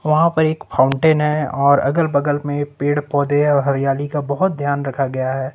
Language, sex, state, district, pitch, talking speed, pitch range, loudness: Hindi, male, Jharkhand, Ranchi, 145 Hz, 205 wpm, 140-150 Hz, -18 LUFS